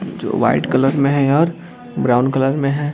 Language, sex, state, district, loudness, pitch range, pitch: Hindi, male, Bihar, Darbhanga, -17 LUFS, 135-145 Hz, 140 Hz